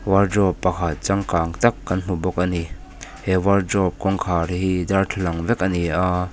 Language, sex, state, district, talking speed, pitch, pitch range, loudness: Mizo, male, Mizoram, Aizawl, 170 wpm, 95 Hz, 90-95 Hz, -21 LUFS